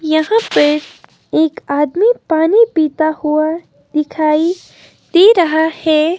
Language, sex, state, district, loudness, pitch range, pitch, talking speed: Hindi, female, Himachal Pradesh, Shimla, -14 LUFS, 310-345 Hz, 315 Hz, 105 wpm